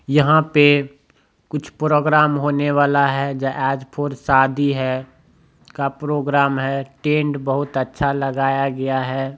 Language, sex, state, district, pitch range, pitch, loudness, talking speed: Hindi, male, Bihar, Bhagalpur, 135-145 Hz, 140 Hz, -19 LUFS, 135 wpm